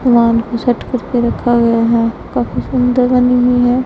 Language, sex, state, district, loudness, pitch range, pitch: Hindi, female, Punjab, Pathankot, -13 LUFS, 230-250 Hz, 240 Hz